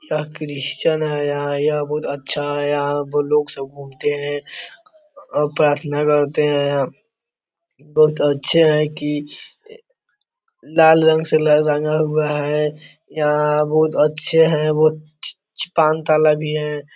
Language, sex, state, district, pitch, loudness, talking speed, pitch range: Hindi, male, Bihar, East Champaran, 150 Hz, -18 LUFS, 130 wpm, 145-155 Hz